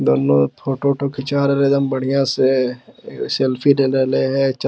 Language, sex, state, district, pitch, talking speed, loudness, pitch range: Magahi, male, Bihar, Lakhisarai, 135 Hz, 220 wpm, -17 LUFS, 130-140 Hz